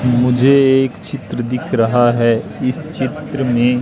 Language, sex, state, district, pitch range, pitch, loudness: Hindi, male, Madhya Pradesh, Katni, 120-135 Hz, 125 Hz, -15 LUFS